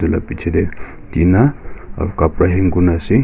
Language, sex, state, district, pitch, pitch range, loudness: Nagamese, male, Nagaland, Kohima, 90 Hz, 85-95 Hz, -16 LUFS